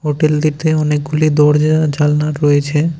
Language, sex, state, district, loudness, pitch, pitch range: Bengali, male, West Bengal, Cooch Behar, -14 LUFS, 150 Hz, 150-155 Hz